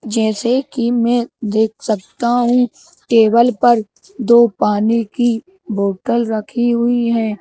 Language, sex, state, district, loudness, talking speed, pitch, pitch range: Hindi, male, Madhya Pradesh, Bhopal, -16 LUFS, 120 wpm, 235 Hz, 220-240 Hz